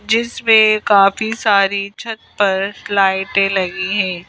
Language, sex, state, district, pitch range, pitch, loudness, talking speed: Hindi, female, Madhya Pradesh, Bhopal, 195-220 Hz, 200 Hz, -15 LUFS, 110 wpm